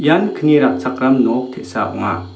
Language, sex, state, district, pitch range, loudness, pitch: Garo, male, Meghalaya, South Garo Hills, 100-150 Hz, -16 LUFS, 130 Hz